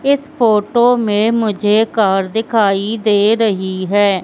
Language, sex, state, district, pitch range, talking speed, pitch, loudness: Hindi, female, Madhya Pradesh, Katni, 205-230 Hz, 125 wpm, 215 Hz, -14 LUFS